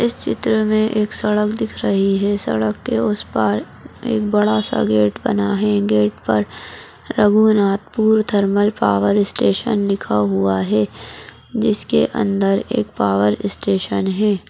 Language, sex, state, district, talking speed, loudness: Hindi, female, West Bengal, Purulia, 135 wpm, -18 LUFS